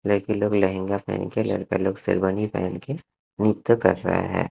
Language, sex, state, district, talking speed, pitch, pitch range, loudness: Hindi, male, Punjab, Kapurthala, 200 wpm, 100 Hz, 95-105 Hz, -24 LUFS